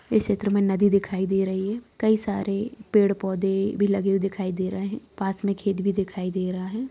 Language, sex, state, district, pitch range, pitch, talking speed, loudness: Hindi, female, Bihar, Muzaffarpur, 195-205 Hz, 200 Hz, 225 wpm, -25 LUFS